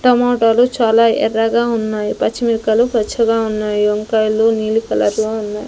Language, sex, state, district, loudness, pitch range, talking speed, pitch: Telugu, female, Andhra Pradesh, Sri Satya Sai, -15 LUFS, 215-230 Hz, 125 wpm, 225 Hz